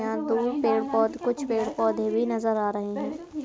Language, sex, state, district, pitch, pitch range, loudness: Hindi, female, Bihar, Araria, 225 Hz, 220-245 Hz, -26 LUFS